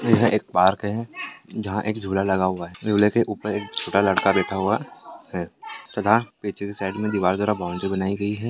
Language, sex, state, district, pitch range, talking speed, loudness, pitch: Hindi, male, Bihar, Sitamarhi, 95-110 Hz, 220 wpm, -23 LUFS, 105 Hz